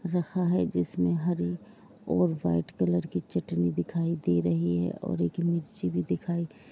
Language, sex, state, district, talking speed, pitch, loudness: Hindi, female, Uttar Pradesh, Jalaun, 170 wpm, 90 Hz, -29 LUFS